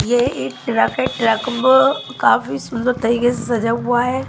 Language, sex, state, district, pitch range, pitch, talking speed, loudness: Hindi, female, Himachal Pradesh, Shimla, 225-250 Hz, 240 Hz, 180 wpm, -17 LUFS